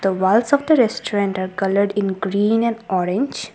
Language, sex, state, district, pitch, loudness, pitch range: English, female, Assam, Kamrup Metropolitan, 205 Hz, -19 LUFS, 195-230 Hz